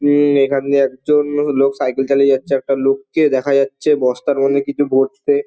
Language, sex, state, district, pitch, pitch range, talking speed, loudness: Bengali, male, West Bengal, Dakshin Dinajpur, 140 Hz, 135-145 Hz, 185 wpm, -15 LUFS